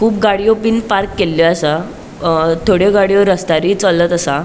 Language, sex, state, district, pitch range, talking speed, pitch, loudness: Konkani, female, Goa, North and South Goa, 165-205 Hz, 160 wpm, 190 Hz, -13 LUFS